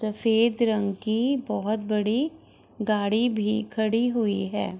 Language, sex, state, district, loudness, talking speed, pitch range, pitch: Hindi, female, Bihar, Gopalganj, -25 LUFS, 140 wpm, 210-230 Hz, 220 Hz